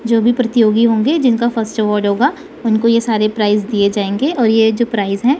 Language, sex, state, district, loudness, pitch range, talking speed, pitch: Hindi, female, Chandigarh, Chandigarh, -14 LUFS, 215-240 Hz, 210 wpm, 225 Hz